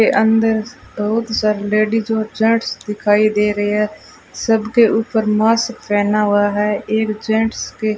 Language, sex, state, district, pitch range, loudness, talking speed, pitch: Hindi, female, Rajasthan, Bikaner, 210-225 Hz, -17 LUFS, 160 wpm, 215 Hz